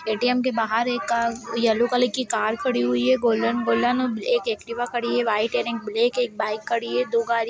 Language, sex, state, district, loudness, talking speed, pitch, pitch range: Hindi, female, Bihar, Gaya, -23 LUFS, 230 wpm, 235 Hz, 220-245 Hz